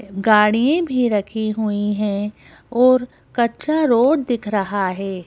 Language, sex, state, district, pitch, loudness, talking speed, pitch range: Hindi, female, Madhya Pradesh, Bhopal, 215 Hz, -18 LUFS, 125 wpm, 205-250 Hz